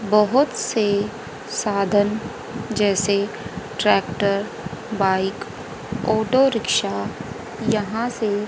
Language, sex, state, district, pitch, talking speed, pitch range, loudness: Hindi, female, Haryana, Rohtak, 210 Hz, 70 wpm, 200-225 Hz, -21 LUFS